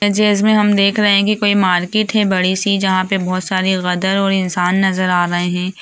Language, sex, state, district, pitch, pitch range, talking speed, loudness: Hindi, female, Bihar, Lakhisarai, 190 Hz, 185-205 Hz, 225 wpm, -15 LUFS